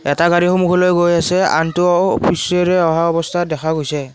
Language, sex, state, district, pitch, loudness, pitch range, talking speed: Assamese, male, Assam, Kamrup Metropolitan, 175 Hz, -15 LUFS, 165-180 Hz, 160 wpm